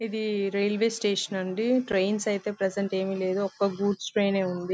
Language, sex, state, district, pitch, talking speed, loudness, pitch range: Telugu, female, Andhra Pradesh, Visakhapatnam, 200 Hz, 165 wpm, -27 LUFS, 190-210 Hz